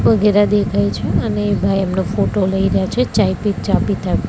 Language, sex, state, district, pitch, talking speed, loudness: Gujarati, female, Gujarat, Gandhinagar, 190 Hz, 195 wpm, -16 LUFS